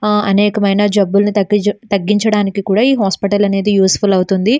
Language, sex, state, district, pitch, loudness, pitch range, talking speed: Telugu, female, Andhra Pradesh, Srikakulam, 205 Hz, -13 LUFS, 195-210 Hz, 145 wpm